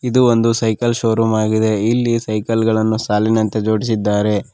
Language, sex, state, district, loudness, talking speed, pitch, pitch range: Kannada, male, Karnataka, Koppal, -16 LUFS, 130 wpm, 110 Hz, 110-115 Hz